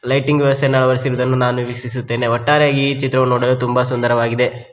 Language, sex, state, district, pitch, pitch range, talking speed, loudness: Kannada, male, Karnataka, Koppal, 125 Hz, 125-135 Hz, 150 wpm, -16 LUFS